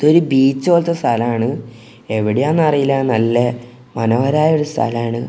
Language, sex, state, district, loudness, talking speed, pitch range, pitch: Malayalam, male, Kerala, Kozhikode, -16 LUFS, 115 wpm, 115-150 Hz, 125 Hz